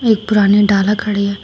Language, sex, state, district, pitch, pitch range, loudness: Hindi, female, Uttar Pradesh, Shamli, 205 Hz, 200-210 Hz, -13 LUFS